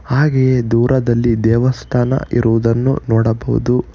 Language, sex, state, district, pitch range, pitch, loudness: Kannada, male, Karnataka, Bangalore, 115-130 Hz, 120 Hz, -15 LUFS